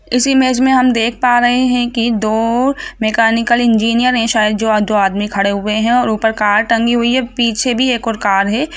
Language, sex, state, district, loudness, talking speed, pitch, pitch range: Hindi, female, Jharkhand, Jamtara, -13 LUFS, 210 wpm, 230 Hz, 220-250 Hz